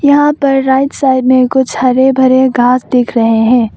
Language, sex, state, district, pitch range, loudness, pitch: Hindi, female, Arunachal Pradesh, Longding, 250-270 Hz, -10 LUFS, 260 Hz